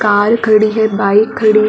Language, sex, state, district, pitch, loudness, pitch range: Hindi, female, Chhattisgarh, Balrampur, 215 Hz, -12 LUFS, 210-220 Hz